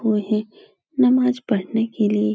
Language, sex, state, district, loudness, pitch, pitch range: Hindi, female, Uttar Pradesh, Etah, -20 LUFS, 220 Hz, 210-250 Hz